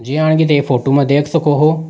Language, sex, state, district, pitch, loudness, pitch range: Rajasthani, male, Rajasthan, Nagaur, 145 Hz, -13 LUFS, 140-155 Hz